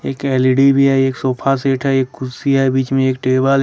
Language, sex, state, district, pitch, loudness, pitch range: Hindi, male, Jharkhand, Ranchi, 135 Hz, -15 LUFS, 130-135 Hz